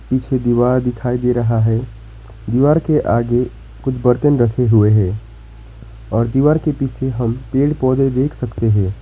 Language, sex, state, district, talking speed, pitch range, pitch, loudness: Hindi, male, West Bengal, Alipurduar, 160 wpm, 110-130 Hz, 125 Hz, -16 LUFS